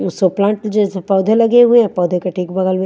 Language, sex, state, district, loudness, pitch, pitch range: Hindi, female, Haryana, Charkhi Dadri, -14 LUFS, 195 Hz, 185-215 Hz